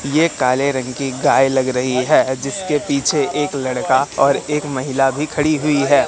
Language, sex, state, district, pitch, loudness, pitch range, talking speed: Hindi, male, Madhya Pradesh, Katni, 140 Hz, -17 LUFS, 130-150 Hz, 185 wpm